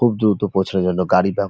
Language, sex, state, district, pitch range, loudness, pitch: Bengali, male, West Bengal, North 24 Parganas, 95-105 Hz, -18 LUFS, 95 Hz